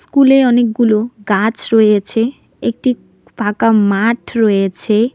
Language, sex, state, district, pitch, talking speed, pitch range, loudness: Bengali, female, West Bengal, Alipurduar, 225 Hz, 105 wpm, 210-240 Hz, -14 LUFS